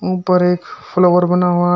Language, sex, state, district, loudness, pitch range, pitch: Hindi, male, Uttar Pradesh, Shamli, -15 LUFS, 175-180 Hz, 180 Hz